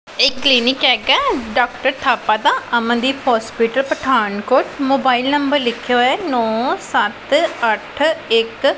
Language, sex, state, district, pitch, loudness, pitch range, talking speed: Punjabi, female, Punjab, Pathankot, 260 Hz, -16 LUFS, 235-285 Hz, 135 wpm